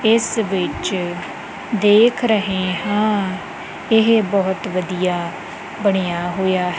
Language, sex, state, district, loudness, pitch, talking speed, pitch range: Punjabi, female, Punjab, Kapurthala, -18 LUFS, 190 Hz, 90 wpm, 180-215 Hz